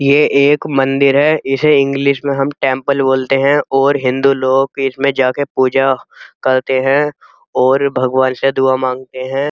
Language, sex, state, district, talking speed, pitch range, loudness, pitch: Hindi, male, Uttar Pradesh, Muzaffarnagar, 160 wpm, 130-140 Hz, -14 LUFS, 135 Hz